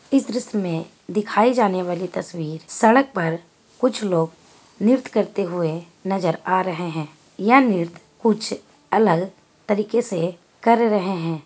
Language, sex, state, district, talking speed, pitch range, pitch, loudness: Hindi, female, Bihar, Gaya, 145 wpm, 170-220 Hz, 190 Hz, -21 LUFS